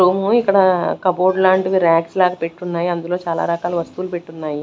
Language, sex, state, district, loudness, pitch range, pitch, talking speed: Telugu, female, Andhra Pradesh, Sri Satya Sai, -17 LUFS, 170-185 Hz, 180 Hz, 155 wpm